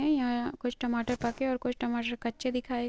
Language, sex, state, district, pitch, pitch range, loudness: Hindi, female, Andhra Pradesh, Krishna, 245 Hz, 240-250 Hz, -32 LUFS